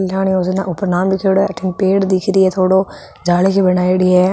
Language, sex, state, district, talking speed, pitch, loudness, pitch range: Marwari, female, Rajasthan, Nagaur, 195 wpm, 190 Hz, -15 LUFS, 185-190 Hz